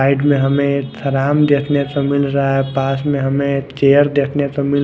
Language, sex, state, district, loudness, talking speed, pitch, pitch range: Hindi, male, Odisha, Khordha, -16 LUFS, 225 wpm, 140 Hz, 135-140 Hz